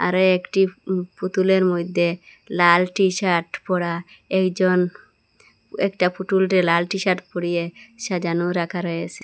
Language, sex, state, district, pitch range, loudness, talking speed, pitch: Bengali, female, Assam, Hailakandi, 175-190 Hz, -21 LUFS, 110 wpm, 180 Hz